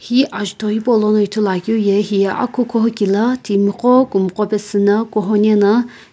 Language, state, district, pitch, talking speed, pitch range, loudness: Sumi, Nagaland, Kohima, 210 Hz, 125 wpm, 205-230 Hz, -15 LUFS